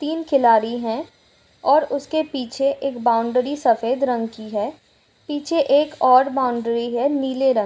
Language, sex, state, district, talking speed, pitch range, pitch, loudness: Hindi, female, Uttar Pradesh, Jalaun, 150 wpm, 235-285 Hz, 265 Hz, -20 LUFS